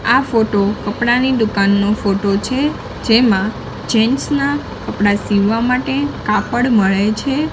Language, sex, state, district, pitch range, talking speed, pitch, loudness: Gujarati, female, Gujarat, Gandhinagar, 205-260 Hz, 120 wpm, 225 Hz, -16 LUFS